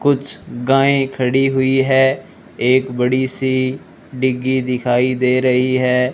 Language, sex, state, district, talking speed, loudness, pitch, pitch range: Hindi, male, Rajasthan, Bikaner, 125 wpm, -16 LUFS, 130 Hz, 125-135 Hz